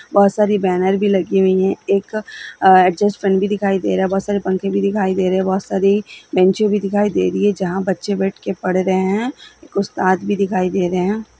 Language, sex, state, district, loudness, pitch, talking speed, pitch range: Hindi, female, Bihar, Gaya, -17 LUFS, 195 Hz, 230 wpm, 190-205 Hz